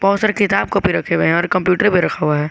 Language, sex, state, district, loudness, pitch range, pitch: Hindi, male, Jharkhand, Garhwa, -16 LUFS, 170-200 Hz, 185 Hz